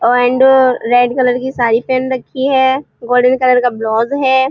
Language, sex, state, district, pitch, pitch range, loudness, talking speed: Hindi, female, Uttar Pradesh, Muzaffarnagar, 255 Hz, 245-260 Hz, -13 LUFS, 175 wpm